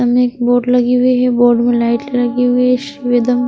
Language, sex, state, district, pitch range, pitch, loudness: Hindi, female, Chhattisgarh, Raipur, 245-250 Hz, 245 Hz, -13 LUFS